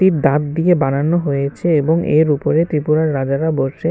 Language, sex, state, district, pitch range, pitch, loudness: Bengali, male, Tripura, West Tripura, 140-160 Hz, 155 Hz, -16 LUFS